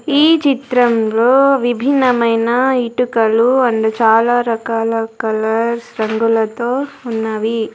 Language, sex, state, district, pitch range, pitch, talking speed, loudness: Telugu, female, Andhra Pradesh, Sri Satya Sai, 225-250 Hz, 235 Hz, 75 wpm, -14 LUFS